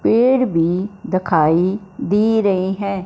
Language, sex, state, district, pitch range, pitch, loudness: Hindi, male, Punjab, Fazilka, 180-210 Hz, 195 Hz, -17 LUFS